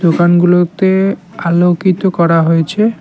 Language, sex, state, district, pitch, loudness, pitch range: Bengali, male, West Bengal, Cooch Behar, 175 Hz, -12 LUFS, 170-190 Hz